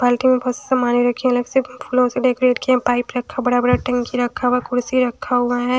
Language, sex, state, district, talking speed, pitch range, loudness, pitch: Hindi, female, Bihar, Kaimur, 215 wpm, 245-255 Hz, -18 LUFS, 250 Hz